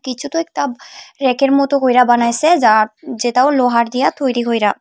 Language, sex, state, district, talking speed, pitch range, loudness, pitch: Bengali, female, Tripura, Unakoti, 160 wpm, 240-275 Hz, -15 LUFS, 255 Hz